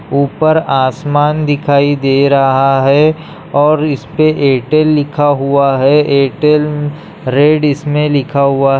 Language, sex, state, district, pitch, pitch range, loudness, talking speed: Hindi, male, Bihar, Muzaffarpur, 145 Hz, 140-150 Hz, -11 LUFS, 130 wpm